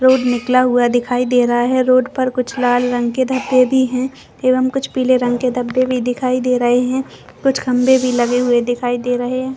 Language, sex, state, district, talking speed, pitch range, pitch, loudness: Hindi, female, Chhattisgarh, Bastar, 220 wpm, 245-255 Hz, 250 Hz, -16 LUFS